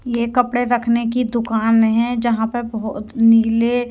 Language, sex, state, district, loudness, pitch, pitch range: Hindi, female, Haryana, Rohtak, -17 LUFS, 235 Hz, 225-240 Hz